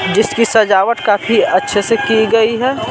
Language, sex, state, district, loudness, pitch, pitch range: Hindi, male, Bihar, Patna, -13 LUFS, 225 Hz, 205-230 Hz